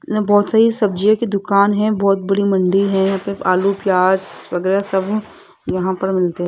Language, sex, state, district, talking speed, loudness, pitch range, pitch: Hindi, female, Rajasthan, Jaipur, 195 wpm, -16 LUFS, 190-205 Hz, 195 Hz